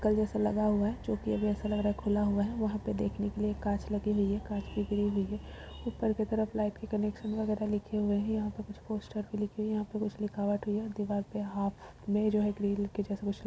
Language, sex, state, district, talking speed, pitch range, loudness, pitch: Hindi, female, Uttar Pradesh, Jalaun, 285 wpm, 205-215 Hz, -33 LUFS, 210 Hz